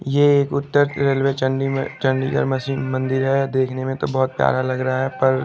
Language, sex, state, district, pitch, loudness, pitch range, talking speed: Hindi, male, Chandigarh, Chandigarh, 135 Hz, -20 LUFS, 130-135 Hz, 220 wpm